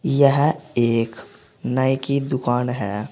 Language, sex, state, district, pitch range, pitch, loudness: Hindi, male, Uttar Pradesh, Saharanpur, 120-140 Hz, 130 Hz, -21 LUFS